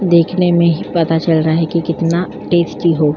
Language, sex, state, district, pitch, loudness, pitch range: Hindi, female, Uttar Pradesh, Jyotiba Phule Nagar, 170 Hz, -14 LUFS, 165-170 Hz